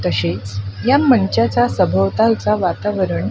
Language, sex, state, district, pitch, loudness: Marathi, female, Maharashtra, Gondia, 115 Hz, -17 LUFS